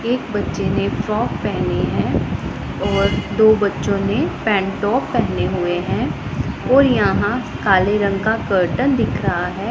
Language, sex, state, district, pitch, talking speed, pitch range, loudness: Hindi, female, Punjab, Pathankot, 210 Hz, 140 wpm, 195-235 Hz, -18 LUFS